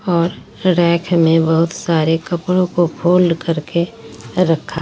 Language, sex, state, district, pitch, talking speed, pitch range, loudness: Hindi, female, Jharkhand, Ranchi, 170 Hz, 125 wpm, 165-175 Hz, -16 LUFS